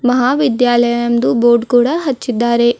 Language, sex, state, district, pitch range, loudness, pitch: Kannada, female, Karnataka, Bidar, 235-250 Hz, -13 LUFS, 240 Hz